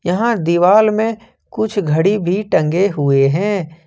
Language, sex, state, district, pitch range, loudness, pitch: Hindi, male, Jharkhand, Ranchi, 165-215 Hz, -15 LUFS, 195 Hz